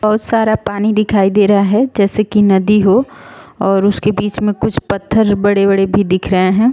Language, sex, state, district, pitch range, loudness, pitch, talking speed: Hindi, female, Bihar, Sitamarhi, 195-215 Hz, -13 LUFS, 205 Hz, 205 wpm